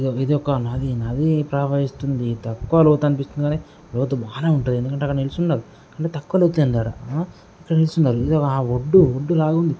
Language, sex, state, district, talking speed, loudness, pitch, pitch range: Telugu, male, Telangana, Karimnagar, 135 wpm, -20 LUFS, 140 Hz, 130-155 Hz